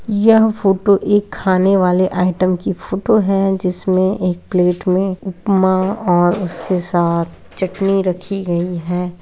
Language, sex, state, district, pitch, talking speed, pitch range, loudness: Hindi, female, Bihar, Lakhisarai, 185 Hz, 135 wpm, 180-195 Hz, -16 LUFS